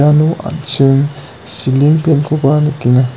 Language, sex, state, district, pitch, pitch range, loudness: Garo, male, Meghalaya, West Garo Hills, 145 Hz, 135-155 Hz, -12 LUFS